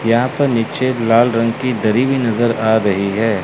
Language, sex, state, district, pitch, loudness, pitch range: Hindi, male, Chandigarh, Chandigarh, 115 Hz, -15 LUFS, 110-125 Hz